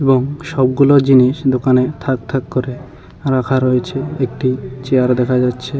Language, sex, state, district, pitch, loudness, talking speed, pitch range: Bengali, male, West Bengal, Cooch Behar, 130 Hz, -15 LUFS, 135 wpm, 125-135 Hz